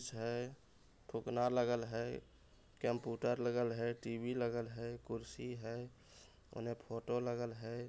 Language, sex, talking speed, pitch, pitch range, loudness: Bhojpuri, male, 120 wpm, 120 Hz, 115-120 Hz, -41 LUFS